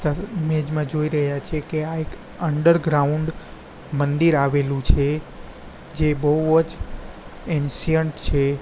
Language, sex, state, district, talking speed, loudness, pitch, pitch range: Gujarati, male, Gujarat, Gandhinagar, 110 wpm, -21 LUFS, 150 Hz, 140-160 Hz